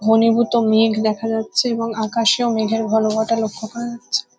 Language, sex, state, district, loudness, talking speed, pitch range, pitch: Bengali, female, West Bengal, Kolkata, -18 LUFS, 150 wpm, 220-230 Hz, 225 Hz